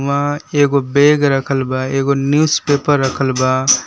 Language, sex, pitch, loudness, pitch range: Bhojpuri, male, 140 Hz, -15 LUFS, 135-145 Hz